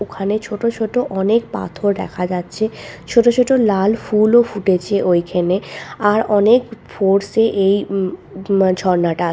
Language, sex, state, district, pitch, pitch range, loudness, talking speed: Bengali, female, West Bengal, Purulia, 200 Hz, 185-220 Hz, -17 LUFS, 140 wpm